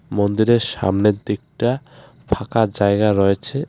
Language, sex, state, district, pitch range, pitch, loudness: Bengali, male, West Bengal, Alipurduar, 100-130 Hz, 110 Hz, -19 LUFS